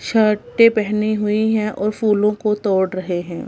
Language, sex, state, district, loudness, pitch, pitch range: Hindi, female, Punjab, Kapurthala, -18 LUFS, 210 Hz, 205-215 Hz